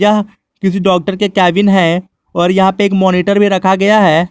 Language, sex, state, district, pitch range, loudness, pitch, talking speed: Hindi, male, Jharkhand, Garhwa, 185-200 Hz, -11 LUFS, 190 Hz, 210 wpm